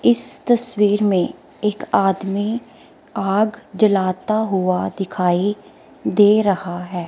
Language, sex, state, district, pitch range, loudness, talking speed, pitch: Hindi, female, Himachal Pradesh, Shimla, 190-220 Hz, -19 LUFS, 100 wpm, 205 Hz